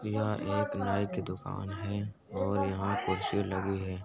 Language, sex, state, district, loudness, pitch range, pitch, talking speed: Hindi, male, Uttar Pradesh, Jyotiba Phule Nagar, -33 LUFS, 95-105 Hz, 100 Hz, 165 wpm